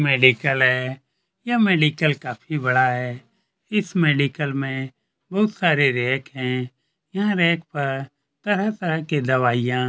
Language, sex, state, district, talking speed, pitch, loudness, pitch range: Hindi, male, Chhattisgarh, Kabirdham, 145 wpm, 140 Hz, -21 LUFS, 130-170 Hz